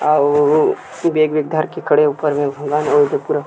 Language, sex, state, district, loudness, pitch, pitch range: Chhattisgarhi, male, Chhattisgarh, Sukma, -16 LUFS, 150 Hz, 145-155 Hz